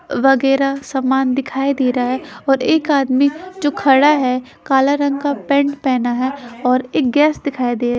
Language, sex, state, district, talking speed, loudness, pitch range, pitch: Hindi, female, Haryana, Charkhi Dadri, 180 wpm, -16 LUFS, 255-285 Hz, 270 Hz